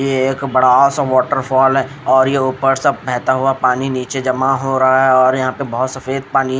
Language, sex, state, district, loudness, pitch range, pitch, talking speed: Hindi, female, Odisha, Khordha, -15 LUFS, 130-135 Hz, 130 Hz, 225 wpm